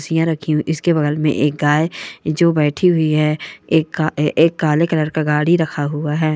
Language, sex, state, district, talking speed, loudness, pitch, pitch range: Hindi, female, Bihar, Darbhanga, 205 wpm, -17 LUFS, 155 Hz, 150-160 Hz